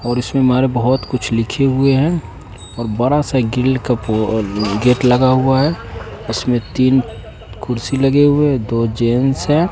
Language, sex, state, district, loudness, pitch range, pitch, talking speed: Hindi, male, Bihar, West Champaran, -15 LUFS, 110-135 Hz, 125 Hz, 165 wpm